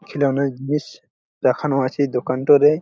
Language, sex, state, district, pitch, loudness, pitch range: Bengali, male, West Bengal, Jalpaiguri, 140 Hz, -20 LUFS, 130-145 Hz